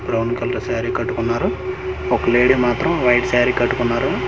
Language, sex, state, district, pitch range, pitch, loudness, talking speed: Telugu, male, Andhra Pradesh, Manyam, 120-125 Hz, 125 Hz, -18 LUFS, 140 wpm